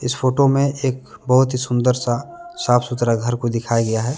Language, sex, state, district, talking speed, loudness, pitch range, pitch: Hindi, male, Jharkhand, Deoghar, 215 wpm, -19 LUFS, 120-135 Hz, 125 Hz